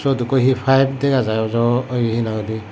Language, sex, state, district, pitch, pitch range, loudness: Chakma, male, Tripura, Dhalai, 120 Hz, 110-135 Hz, -18 LUFS